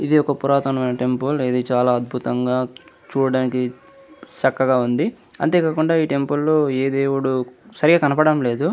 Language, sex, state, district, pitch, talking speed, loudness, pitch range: Telugu, male, Andhra Pradesh, Anantapur, 135 Hz, 130 wpm, -19 LUFS, 125-155 Hz